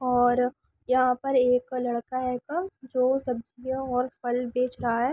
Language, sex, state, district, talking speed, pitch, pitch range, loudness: Hindi, female, Uttar Pradesh, Varanasi, 150 wpm, 250 Hz, 245-255 Hz, -27 LUFS